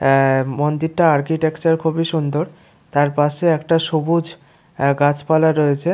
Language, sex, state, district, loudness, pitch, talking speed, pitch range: Bengali, male, West Bengal, Paschim Medinipur, -18 LUFS, 155 Hz, 130 wpm, 145-165 Hz